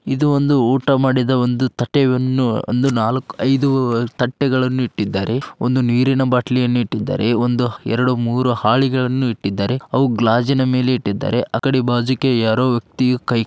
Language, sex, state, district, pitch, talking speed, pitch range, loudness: Kannada, male, Karnataka, Dharwad, 125 Hz, 135 wpm, 120-130 Hz, -17 LUFS